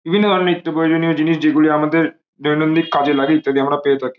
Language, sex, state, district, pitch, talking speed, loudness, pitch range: Bengali, male, West Bengal, Malda, 155 Hz, 200 wpm, -16 LUFS, 145-165 Hz